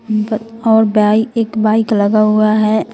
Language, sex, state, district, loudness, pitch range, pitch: Hindi, female, Bihar, West Champaran, -13 LUFS, 215-220 Hz, 215 Hz